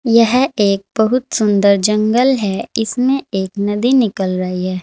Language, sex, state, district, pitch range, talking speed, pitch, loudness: Hindi, female, Uttar Pradesh, Saharanpur, 195-245 Hz, 160 wpm, 215 Hz, -15 LUFS